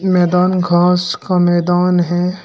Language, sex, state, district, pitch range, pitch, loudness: Hindi, male, Uttar Pradesh, Shamli, 175-180 Hz, 180 Hz, -14 LUFS